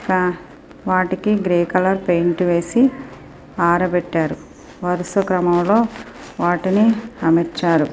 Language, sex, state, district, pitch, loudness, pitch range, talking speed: Telugu, female, Andhra Pradesh, Srikakulam, 180 Hz, -18 LUFS, 175-195 Hz, 70 wpm